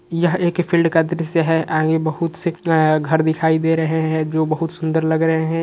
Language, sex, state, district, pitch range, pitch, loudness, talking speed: Hindi, male, Uttar Pradesh, Etah, 160-165 Hz, 160 Hz, -18 LUFS, 200 wpm